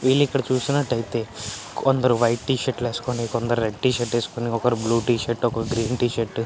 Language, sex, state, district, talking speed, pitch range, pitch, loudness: Telugu, male, Andhra Pradesh, Guntur, 205 wpm, 115-130 Hz, 120 Hz, -23 LUFS